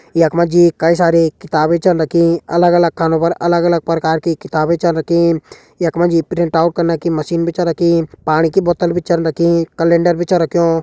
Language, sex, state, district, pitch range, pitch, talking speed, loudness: Garhwali, male, Uttarakhand, Uttarkashi, 165-175 Hz, 170 Hz, 205 wpm, -14 LUFS